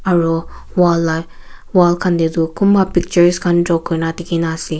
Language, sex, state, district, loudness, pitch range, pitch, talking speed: Nagamese, female, Nagaland, Kohima, -15 LUFS, 165-175 Hz, 170 Hz, 175 wpm